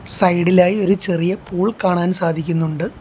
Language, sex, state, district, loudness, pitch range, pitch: Malayalam, male, Kerala, Kollam, -17 LUFS, 170-190 Hz, 180 Hz